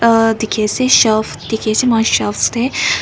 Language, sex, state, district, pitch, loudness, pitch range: Nagamese, female, Nagaland, Kohima, 225 Hz, -14 LUFS, 215-240 Hz